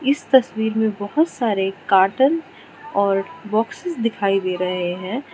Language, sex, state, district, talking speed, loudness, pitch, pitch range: Hindi, female, Arunachal Pradesh, Lower Dibang Valley, 135 wpm, -20 LUFS, 220 Hz, 195-265 Hz